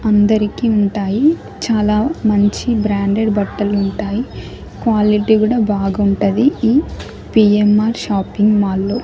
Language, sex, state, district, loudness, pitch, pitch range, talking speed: Telugu, male, Andhra Pradesh, Annamaya, -15 LUFS, 210 Hz, 205-225 Hz, 105 wpm